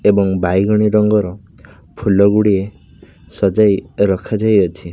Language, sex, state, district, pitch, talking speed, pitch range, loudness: Odia, male, Odisha, Khordha, 100 Hz, 95 wpm, 95-105 Hz, -15 LUFS